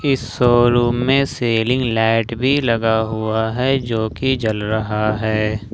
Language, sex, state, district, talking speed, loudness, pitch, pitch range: Hindi, male, Jharkhand, Ranchi, 155 wpm, -18 LUFS, 115 Hz, 110-125 Hz